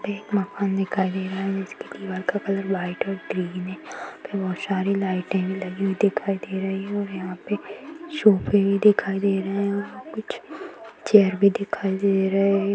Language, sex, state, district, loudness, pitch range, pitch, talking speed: Hindi, female, Uttar Pradesh, Ghazipur, -24 LUFS, 190-200 Hz, 195 Hz, 195 wpm